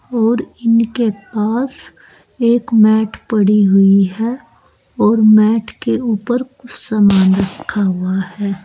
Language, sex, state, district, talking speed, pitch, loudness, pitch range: Hindi, female, Uttar Pradesh, Saharanpur, 120 wpm, 215 Hz, -14 LUFS, 195-235 Hz